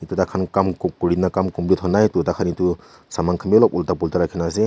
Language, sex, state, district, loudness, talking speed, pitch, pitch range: Nagamese, male, Nagaland, Kohima, -20 LUFS, 245 wpm, 90 Hz, 85-95 Hz